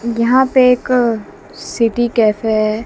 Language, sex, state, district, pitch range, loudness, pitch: Hindi, female, Haryana, Jhajjar, 220-250 Hz, -14 LUFS, 235 Hz